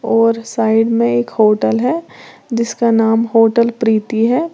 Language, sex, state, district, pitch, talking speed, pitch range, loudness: Hindi, female, Uttar Pradesh, Lalitpur, 225 Hz, 145 wpm, 220-235 Hz, -14 LUFS